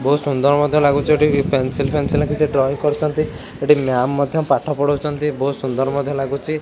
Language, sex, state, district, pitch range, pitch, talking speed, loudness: Odia, male, Odisha, Khordha, 135-150 Hz, 145 Hz, 170 wpm, -18 LUFS